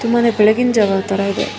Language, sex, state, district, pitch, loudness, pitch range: Kannada, female, Karnataka, Shimoga, 215 Hz, -15 LUFS, 200-235 Hz